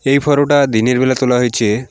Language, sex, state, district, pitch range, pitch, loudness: Bengali, male, West Bengal, Alipurduar, 120-140 Hz, 130 Hz, -13 LUFS